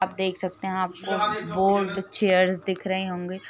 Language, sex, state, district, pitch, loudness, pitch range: Hindi, female, Uttar Pradesh, Jalaun, 190 Hz, -25 LUFS, 185-195 Hz